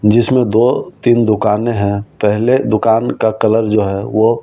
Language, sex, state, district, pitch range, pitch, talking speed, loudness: Hindi, male, Delhi, New Delhi, 105-120 Hz, 110 Hz, 165 wpm, -14 LUFS